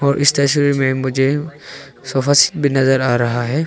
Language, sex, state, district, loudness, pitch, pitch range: Hindi, male, Arunachal Pradesh, Longding, -15 LUFS, 140 Hz, 130-145 Hz